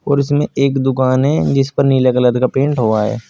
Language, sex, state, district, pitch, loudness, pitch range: Hindi, male, Uttar Pradesh, Saharanpur, 135 Hz, -14 LUFS, 125-140 Hz